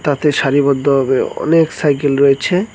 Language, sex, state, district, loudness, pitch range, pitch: Bengali, male, West Bengal, Cooch Behar, -14 LUFS, 140-160 Hz, 145 Hz